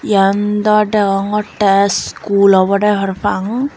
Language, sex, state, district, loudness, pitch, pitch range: Chakma, female, Tripura, Unakoti, -14 LUFS, 200 Hz, 195-210 Hz